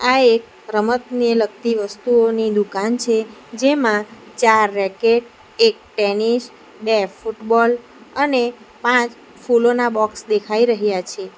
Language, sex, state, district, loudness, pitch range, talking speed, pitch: Gujarati, female, Gujarat, Valsad, -18 LUFS, 215-240 Hz, 110 wpm, 230 Hz